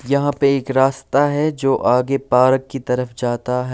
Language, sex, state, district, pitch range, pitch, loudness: Hindi, male, Delhi, New Delhi, 125-140 Hz, 135 Hz, -18 LUFS